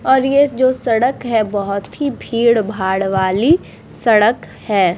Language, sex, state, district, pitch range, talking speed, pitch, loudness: Hindi, female, Bihar, Vaishali, 200-260 Hz, 145 wpm, 230 Hz, -16 LUFS